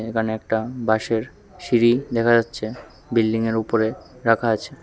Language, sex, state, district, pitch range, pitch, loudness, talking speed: Bengali, male, Tripura, West Tripura, 110-120 Hz, 115 Hz, -21 LUFS, 125 wpm